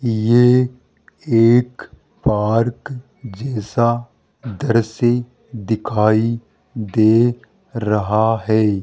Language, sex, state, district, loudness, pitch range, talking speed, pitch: Hindi, male, Rajasthan, Jaipur, -17 LUFS, 110-120 Hz, 60 wpm, 115 Hz